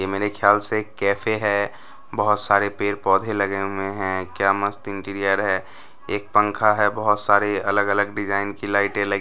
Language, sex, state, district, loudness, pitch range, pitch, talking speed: Hindi, male, Bihar, West Champaran, -21 LUFS, 100-105 Hz, 100 Hz, 175 wpm